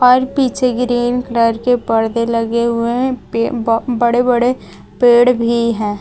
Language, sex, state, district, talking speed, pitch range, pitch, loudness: Hindi, female, Chhattisgarh, Raipur, 160 wpm, 230-250 Hz, 240 Hz, -15 LUFS